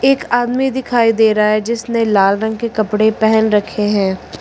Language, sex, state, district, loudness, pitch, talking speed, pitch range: Hindi, female, Uttar Pradesh, Lucknow, -14 LUFS, 220 Hz, 190 wpm, 210-235 Hz